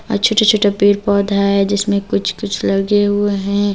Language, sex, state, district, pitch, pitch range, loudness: Hindi, female, Jharkhand, Deoghar, 205 Hz, 200-205 Hz, -15 LUFS